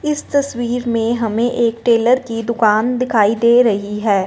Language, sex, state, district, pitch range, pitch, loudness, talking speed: Hindi, female, Punjab, Fazilka, 225-245 Hz, 235 Hz, -16 LUFS, 170 wpm